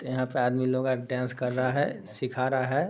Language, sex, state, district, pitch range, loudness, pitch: Maithili, male, Bihar, Samastipur, 125-130 Hz, -28 LUFS, 130 Hz